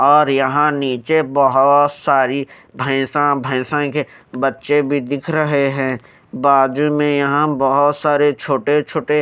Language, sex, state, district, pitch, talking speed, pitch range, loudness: Hindi, male, Haryana, Rohtak, 140 Hz, 135 wpm, 135-150 Hz, -16 LUFS